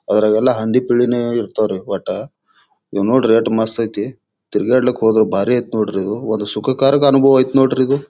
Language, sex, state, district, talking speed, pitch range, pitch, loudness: Kannada, male, Karnataka, Bijapur, 165 wpm, 110-130 Hz, 120 Hz, -16 LUFS